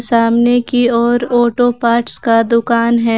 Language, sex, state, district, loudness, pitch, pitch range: Hindi, female, Jharkhand, Garhwa, -13 LUFS, 235 Hz, 230-240 Hz